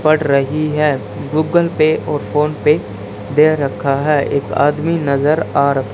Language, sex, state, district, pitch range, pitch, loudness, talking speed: Hindi, male, Haryana, Charkhi Dadri, 140-155 Hz, 150 Hz, -15 LUFS, 160 wpm